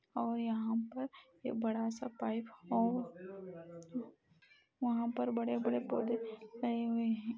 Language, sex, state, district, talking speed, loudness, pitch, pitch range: Hindi, female, Uttar Pradesh, Budaun, 140 wpm, -38 LUFS, 230 Hz, 195-235 Hz